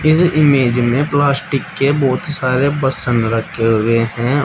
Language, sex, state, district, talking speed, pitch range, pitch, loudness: Hindi, male, Uttar Pradesh, Shamli, 150 wpm, 120-145 Hz, 135 Hz, -15 LUFS